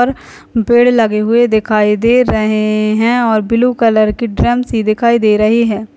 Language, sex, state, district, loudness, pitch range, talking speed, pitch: Hindi, female, Chhattisgarh, Sarguja, -12 LUFS, 215-240 Hz, 170 wpm, 225 Hz